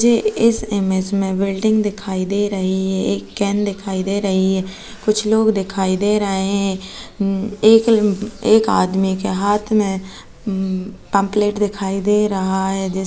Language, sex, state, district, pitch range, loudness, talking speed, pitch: Hindi, female, Uttar Pradesh, Jalaun, 190-210 Hz, -18 LUFS, 160 wpm, 200 Hz